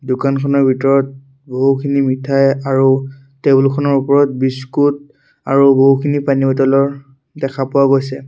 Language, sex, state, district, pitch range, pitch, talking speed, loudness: Assamese, male, Assam, Sonitpur, 135-140 Hz, 135 Hz, 115 wpm, -14 LUFS